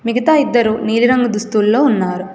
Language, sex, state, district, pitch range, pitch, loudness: Telugu, female, Telangana, Komaram Bheem, 210-245 Hz, 230 Hz, -14 LUFS